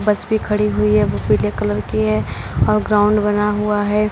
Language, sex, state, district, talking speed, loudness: Hindi, female, Uttar Pradesh, Lalitpur, 220 wpm, -17 LUFS